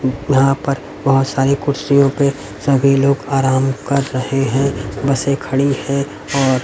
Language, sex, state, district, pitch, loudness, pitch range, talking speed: Hindi, male, Haryana, Rohtak, 135 Hz, -16 LUFS, 135-140 Hz, 145 wpm